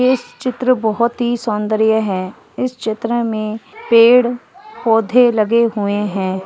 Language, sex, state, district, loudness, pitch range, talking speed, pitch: Hindi, female, Uttarakhand, Uttarkashi, -16 LUFS, 215-245 Hz, 130 wpm, 230 Hz